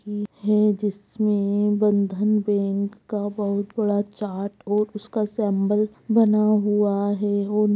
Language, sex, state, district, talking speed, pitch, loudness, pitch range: Magahi, female, Bihar, Gaya, 100 wpm, 205 Hz, -23 LUFS, 205-210 Hz